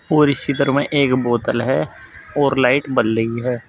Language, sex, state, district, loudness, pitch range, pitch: Hindi, male, Uttar Pradesh, Saharanpur, -18 LUFS, 120-140 Hz, 135 Hz